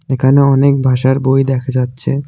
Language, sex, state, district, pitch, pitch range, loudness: Bengali, male, West Bengal, Alipurduar, 135 Hz, 130-140 Hz, -12 LUFS